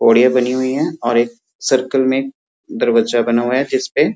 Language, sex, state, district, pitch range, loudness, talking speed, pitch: Hindi, male, Uttar Pradesh, Muzaffarnagar, 120-130 Hz, -16 LUFS, 200 wpm, 125 Hz